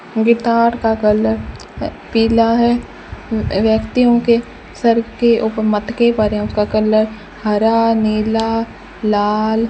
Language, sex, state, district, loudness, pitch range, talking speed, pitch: Hindi, female, Rajasthan, Bikaner, -15 LUFS, 215-230 Hz, 115 wpm, 225 Hz